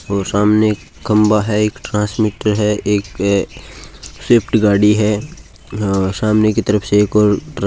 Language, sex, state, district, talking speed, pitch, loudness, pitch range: Hindi, male, Rajasthan, Churu, 155 wpm, 105 Hz, -15 LUFS, 100-105 Hz